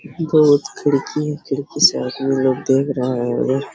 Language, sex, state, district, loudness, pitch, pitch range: Hindi, male, Jharkhand, Sahebganj, -18 LUFS, 140 Hz, 135-150 Hz